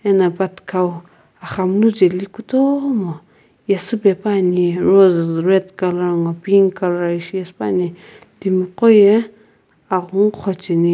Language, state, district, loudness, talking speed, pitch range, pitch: Sumi, Nagaland, Kohima, -16 LUFS, 105 wpm, 180-200 Hz, 190 Hz